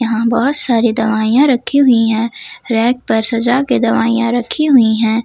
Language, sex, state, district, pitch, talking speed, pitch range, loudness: Hindi, female, Jharkhand, Ranchi, 235 Hz, 170 wpm, 225-250 Hz, -13 LUFS